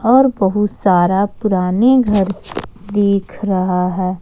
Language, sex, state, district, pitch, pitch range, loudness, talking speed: Hindi, female, Jharkhand, Ranchi, 200 Hz, 185-210 Hz, -15 LUFS, 115 wpm